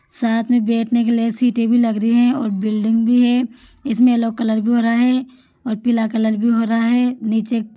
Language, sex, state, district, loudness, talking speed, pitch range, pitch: Hindi, female, Rajasthan, Churu, -17 LUFS, 230 wpm, 225-245 Hz, 230 Hz